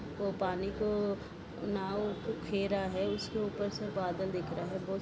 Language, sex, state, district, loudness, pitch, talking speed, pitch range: Hindi, female, Maharashtra, Solapur, -35 LUFS, 200 Hz, 165 wpm, 190-205 Hz